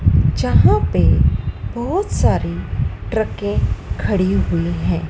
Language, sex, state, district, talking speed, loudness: Hindi, female, Madhya Pradesh, Dhar, 95 wpm, -18 LUFS